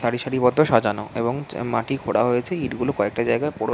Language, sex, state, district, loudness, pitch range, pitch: Bengali, male, West Bengal, Jhargram, -22 LUFS, 115-135 Hz, 120 Hz